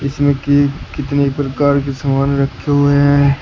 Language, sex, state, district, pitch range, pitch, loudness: Hindi, male, Uttar Pradesh, Shamli, 140-145 Hz, 140 Hz, -15 LUFS